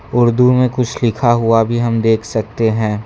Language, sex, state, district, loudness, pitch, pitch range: Hindi, male, Karnataka, Bangalore, -14 LUFS, 115 Hz, 110-125 Hz